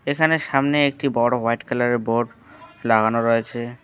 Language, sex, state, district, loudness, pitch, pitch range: Bengali, male, West Bengal, Alipurduar, -20 LUFS, 120 Hz, 115-140 Hz